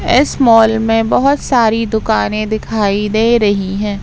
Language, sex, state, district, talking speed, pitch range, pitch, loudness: Hindi, female, Madhya Pradesh, Katni, 150 wpm, 210-225 Hz, 220 Hz, -13 LUFS